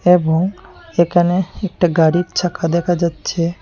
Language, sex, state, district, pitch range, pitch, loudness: Bengali, male, Tripura, Unakoti, 170-180 Hz, 175 Hz, -17 LUFS